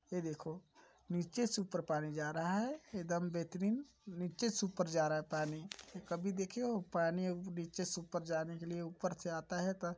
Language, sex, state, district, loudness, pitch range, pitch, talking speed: Hindi, male, Chhattisgarh, Balrampur, -40 LUFS, 165-190 Hz, 175 Hz, 210 wpm